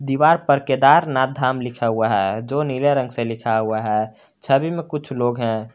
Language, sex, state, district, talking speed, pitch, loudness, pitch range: Hindi, male, Jharkhand, Garhwa, 200 wpm, 130 Hz, -19 LUFS, 115-140 Hz